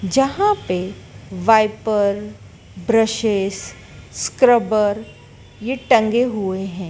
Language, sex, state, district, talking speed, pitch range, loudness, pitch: Hindi, female, Madhya Pradesh, Dhar, 80 wpm, 185-230 Hz, -18 LUFS, 210 Hz